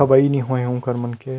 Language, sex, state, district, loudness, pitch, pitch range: Chhattisgarhi, male, Chhattisgarh, Rajnandgaon, -20 LUFS, 130 Hz, 125-135 Hz